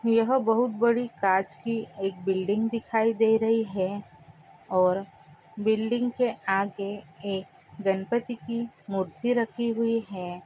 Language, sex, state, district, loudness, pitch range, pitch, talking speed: Hindi, female, Andhra Pradesh, Anantapur, -27 LUFS, 195-230 Hz, 220 Hz, 125 wpm